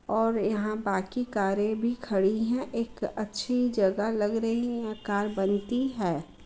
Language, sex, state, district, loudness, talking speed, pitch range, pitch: Hindi, female, Bihar, Muzaffarpur, -28 LUFS, 160 wpm, 200-235 Hz, 215 Hz